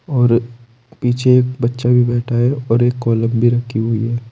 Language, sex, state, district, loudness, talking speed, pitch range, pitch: Hindi, male, Uttar Pradesh, Saharanpur, -16 LUFS, 195 wpm, 115-125 Hz, 120 Hz